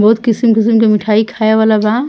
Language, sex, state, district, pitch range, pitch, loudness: Bhojpuri, female, Bihar, Muzaffarpur, 215-230 Hz, 220 Hz, -11 LUFS